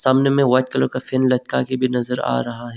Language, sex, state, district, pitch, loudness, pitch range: Hindi, male, Arunachal Pradesh, Longding, 130 Hz, -19 LUFS, 125-130 Hz